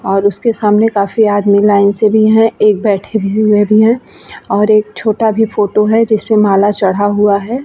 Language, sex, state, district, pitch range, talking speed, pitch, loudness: Hindi, female, Bihar, Vaishali, 205-220 Hz, 210 wpm, 210 Hz, -11 LUFS